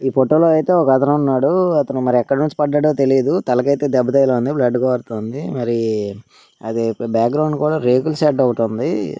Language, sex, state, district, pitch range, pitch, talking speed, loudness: Telugu, male, Telangana, Karimnagar, 120-150 Hz, 130 Hz, 165 wpm, -17 LUFS